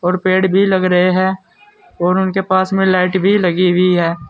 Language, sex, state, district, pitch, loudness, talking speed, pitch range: Hindi, male, Uttar Pradesh, Saharanpur, 185 Hz, -14 LUFS, 210 wpm, 180-190 Hz